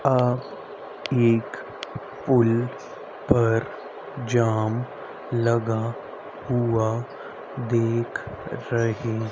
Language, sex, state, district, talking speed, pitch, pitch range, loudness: Hindi, male, Haryana, Rohtak, 60 wpm, 115 Hz, 115-125 Hz, -24 LUFS